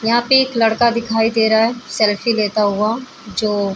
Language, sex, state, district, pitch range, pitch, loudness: Hindi, female, Bihar, Saran, 215-235 Hz, 225 Hz, -16 LUFS